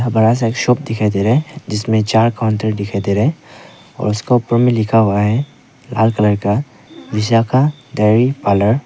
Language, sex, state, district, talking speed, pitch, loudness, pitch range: Hindi, male, Arunachal Pradesh, Papum Pare, 195 wpm, 110 Hz, -15 LUFS, 105-125 Hz